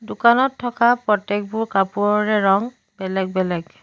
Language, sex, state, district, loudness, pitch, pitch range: Assamese, female, Assam, Sonitpur, -19 LUFS, 210 Hz, 195-235 Hz